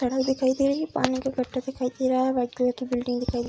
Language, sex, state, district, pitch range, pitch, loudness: Hindi, female, Bihar, Darbhanga, 250-265 Hz, 255 Hz, -26 LUFS